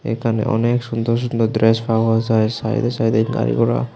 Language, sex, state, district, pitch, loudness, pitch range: Bengali, male, Tripura, West Tripura, 115 Hz, -18 LUFS, 110-115 Hz